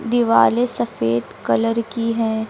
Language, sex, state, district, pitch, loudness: Hindi, female, Uttar Pradesh, Lucknow, 230 Hz, -19 LUFS